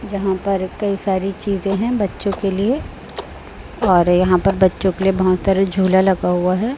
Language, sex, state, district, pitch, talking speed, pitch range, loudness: Hindi, female, Chhattisgarh, Raipur, 195 Hz, 185 wpm, 185-200 Hz, -18 LUFS